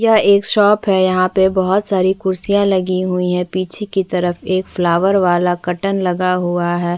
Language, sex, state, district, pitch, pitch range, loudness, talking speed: Hindi, female, Chhattisgarh, Bastar, 185 Hz, 180-195 Hz, -16 LUFS, 190 wpm